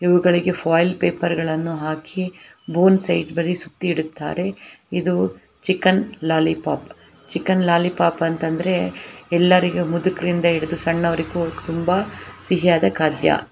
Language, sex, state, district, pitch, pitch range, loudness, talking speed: Kannada, female, Karnataka, Belgaum, 170 Hz, 165-180 Hz, -20 LUFS, 105 wpm